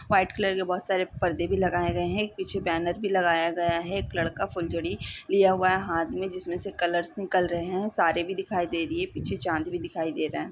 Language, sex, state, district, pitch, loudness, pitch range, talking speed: Hindi, female, Bihar, East Champaran, 185 Hz, -27 LUFS, 170-195 Hz, 250 wpm